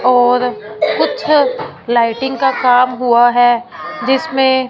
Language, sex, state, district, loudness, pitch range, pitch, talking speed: Hindi, female, Punjab, Fazilka, -13 LUFS, 240-265 Hz, 250 Hz, 100 wpm